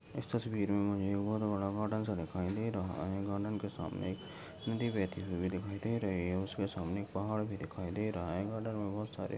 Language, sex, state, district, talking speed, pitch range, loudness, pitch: Hindi, male, Goa, North and South Goa, 230 wpm, 95-105 Hz, -37 LUFS, 100 Hz